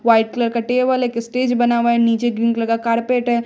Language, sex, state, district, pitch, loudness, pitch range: Hindi, female, Bihar, West Champaran, 235 Hz, -18 LUFS, 230-245 Hz